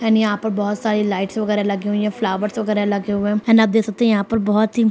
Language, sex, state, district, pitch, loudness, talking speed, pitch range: Hindi, female, Bihar, Madhepura, 210 Hz, -19 LUFS, 305 wpm, 205-220 Hz